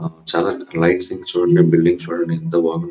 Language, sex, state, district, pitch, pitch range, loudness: Telugu, male, Andhra Pradesh, Visakhapatnam, 85 Hz, 85-90 Hz, -17 LUFS